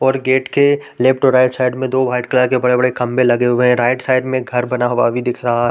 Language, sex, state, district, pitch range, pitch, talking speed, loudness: Hindi, male, Chhattisgarh, Raigarh, 125-130 Hz, 125 Hz, 285 wpm, -15 LUFS